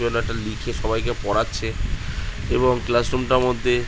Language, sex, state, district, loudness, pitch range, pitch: Bengali, male, West Bengal, Jhargram, -23 LUFS, 105-120 Hz, 115 Hz